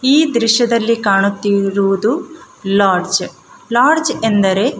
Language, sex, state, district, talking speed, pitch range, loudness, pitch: Kannada, female, Karnataka, Dakshina Kannada, 75 wpm, 195-245 Hz, -14 LUFS, 220 Hz